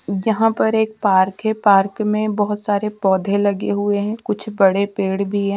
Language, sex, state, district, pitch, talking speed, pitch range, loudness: Hindi, female, Haryana, Charkhi Dadri, 205 Hz, 195 wpm, 200-215 Hz, -18 LUFS